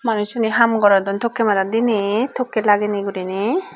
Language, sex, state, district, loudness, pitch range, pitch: Chakma, female, Tripura, Unakoti, -18 LUFS, 200-235 Hz, 215 Hz